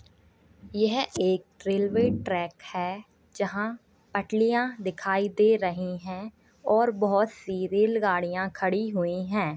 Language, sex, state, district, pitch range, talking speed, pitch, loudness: Hindi, female, Uttar Pradesh, Jyotiba Phule Nagar, 185-215 Hz, 115 wpm, 195 Hz, -27 LUFS